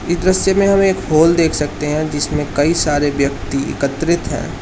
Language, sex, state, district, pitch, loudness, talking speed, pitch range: Hindi, male, Uttar Pradesh, Shamli, 155 Hz, -16 LUFS, 180 wpm, 145-170 Hz